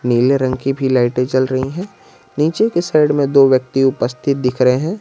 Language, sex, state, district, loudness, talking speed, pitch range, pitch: Hindi, male, Jharkhand, Garhwa, -15 LUFS, 215 wpm, 130-145 Hz, 135 Hz